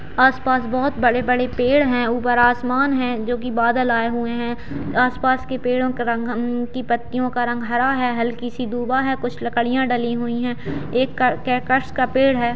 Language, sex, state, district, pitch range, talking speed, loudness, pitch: Hindi, female, Bihar, Gaya, 240-255 Hz, 160 wpm, -20 LUFS, 245 Hz